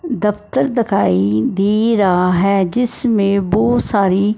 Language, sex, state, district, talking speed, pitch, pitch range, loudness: Hindi, female, Punjab, Fazilka, 110 wpm, 205 Hz, 195-230 Hz, -15 LUFS